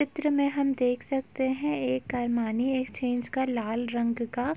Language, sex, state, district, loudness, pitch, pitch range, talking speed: Hindi, female, Uttar Pradesh, Etah, -28 LUFS, 255 Hz, 240-270 Hz, 185 wpm